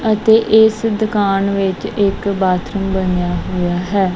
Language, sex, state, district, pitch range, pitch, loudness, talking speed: Punjabi, female, Punjab, Kapurthala, 185-215 Hz, 195 Hz, -15 LUFS, 130 wpm